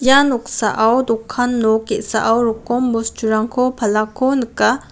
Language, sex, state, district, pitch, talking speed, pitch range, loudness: Garo, female, Meghalaya, West Garo Hills, 235 Hz, 110 wpm, 220-250 Hz, -17 LUFS